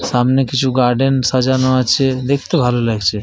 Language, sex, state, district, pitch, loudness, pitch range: Bengali, male, Jharkhand, Jamtara, 130 Hz, -15 LUFS, 125-135 Hz